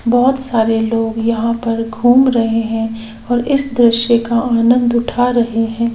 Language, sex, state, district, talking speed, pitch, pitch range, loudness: Hindi, female, Bihar, Saran, 160 wpm, 230 Hz, 225-245 Hz, -14 LUFS